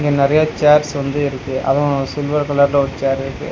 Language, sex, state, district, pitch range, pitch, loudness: Tamil, male, Tamil Nadu, Nilgiris, 135-145 Hz, 140 Hz, -16 LUFS